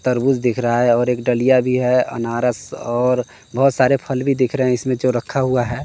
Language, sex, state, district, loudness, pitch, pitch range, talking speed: Hindi, male, Bihar, West Champaran, -18 LUFS, 125 Hz, 120-130 Hz, 225 wpm